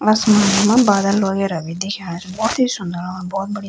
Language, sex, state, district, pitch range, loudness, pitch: Garhwali, female, Uttarakhand, Tehri Garhwal, 185-210 Hz, -17 LUFS, 195 Hz